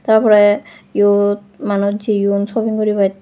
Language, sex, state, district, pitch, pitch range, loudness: Chakma, female, Tripura, West Tripura, 205 Hz, 200-215 Hz, -15 LUFS